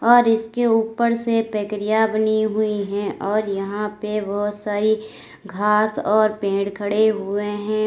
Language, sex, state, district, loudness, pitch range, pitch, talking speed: Hindi, female, Uttar Pradesh, Lalitpur, -21 LUFS, 205-220 Hz, 215 Hz, 145 wpm